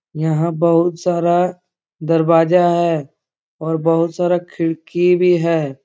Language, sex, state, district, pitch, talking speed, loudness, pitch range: Hindi, male, Bihar, Supaul, 170 Hz, 125 wpm, -16 LUFS, 165-175 Hz